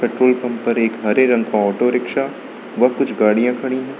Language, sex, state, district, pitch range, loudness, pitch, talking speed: Hindi, male, Uttar Pradesh, Lucknow, 115-125 Hz, -17 LUFS, 120 Hz, 210 wpm